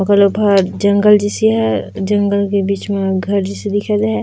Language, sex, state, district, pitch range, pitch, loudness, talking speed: Chhattisgarhi, female, Chhattisgarh, Raigarh, 195-205 Hz, 200 Hz, -15 LUFS, 140 wpm